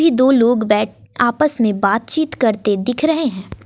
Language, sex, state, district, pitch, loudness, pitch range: Hindi, female, Bihar, West Champaran, 240 Hz, -16 LUFS, 210-290 Hz